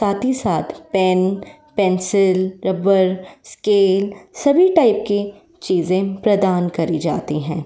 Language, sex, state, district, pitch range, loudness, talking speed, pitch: Hindi, female, Uttar Pradesh, Varanasi, 185-205 Hz, -18 LUFS, 120 wpm, 195 Hz